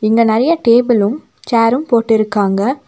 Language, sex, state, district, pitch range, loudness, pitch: Tamil, female, Tamil Nadu, Nilgiris, 215-245 Hz, -13 LUFS, 230 Hz